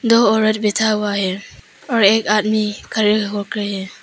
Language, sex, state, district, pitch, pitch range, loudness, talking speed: Hindi, female, Arunachal Pradesh, Papum Pare, 215 Hz, 205-220 Hz, -17 LUFS, 180 wpm